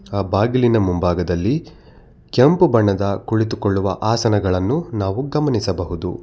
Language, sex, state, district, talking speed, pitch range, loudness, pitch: Kannada, male, Karnataka, Bangalore, 85 wpm, 95-120 Hz, -18 LUFS, 100 Hz